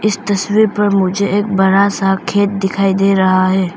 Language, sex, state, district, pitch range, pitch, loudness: Hindi, female, Arunachal Pradesh, Papum Pare, 190-205 Hz, 195 Hz, -14 LUFS